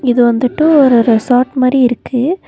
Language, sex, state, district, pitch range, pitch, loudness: Tamil, female, Tamil Nadu, Nilgiris, 245-275 Hz, 250 Hz, -11 LUFS